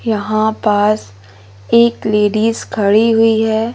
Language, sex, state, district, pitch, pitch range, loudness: Hindi, female, Madhya Pradesh, Umaria, 215 Hz, 205-225 Hz, -14 LUFS